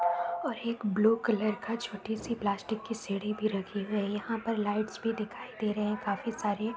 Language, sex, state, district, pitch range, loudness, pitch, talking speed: Hindi, female, Uttar Pradesh, Varanasi, 205-225 Hz, -32 LUFS, 215 Hz, 210 wpm